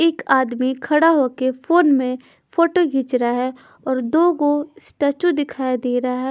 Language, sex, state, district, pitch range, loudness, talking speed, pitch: Hindi, female, Bihar, Patna, 255-325 Hz, -19 LUFS, 170 wpm, 270 Hz